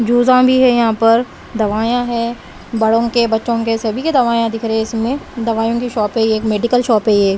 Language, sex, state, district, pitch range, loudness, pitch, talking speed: Hindi, female, Bihar, West Champaran, 220-240 Hz, -15 LUFS, 230 Hz, 220 wpm